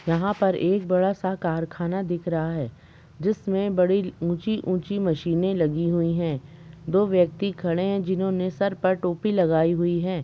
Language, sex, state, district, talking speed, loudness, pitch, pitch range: Hindi, female, Uttar Pradesh, Jalaun, 165 wpm, -24 LUFS, 180 Hz, 165-190 Hz